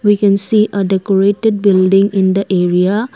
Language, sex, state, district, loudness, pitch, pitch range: English, female, Assam, Kamrup Metropolitan, -12 LUFS, 195 Hz, 190-205 Hz